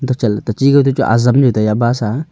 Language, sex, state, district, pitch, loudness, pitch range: Wancho, male, Arunachal Pradesh, Longding, 120 Hz, -13 LUFS, 110-135 Hz